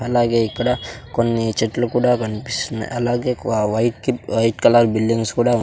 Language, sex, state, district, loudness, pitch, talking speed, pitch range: Telugu, male, Andhra Pradesh, Sri Satya Sai, -19 LUFS, 115 Hz, 170 wpm, 115-120 Hz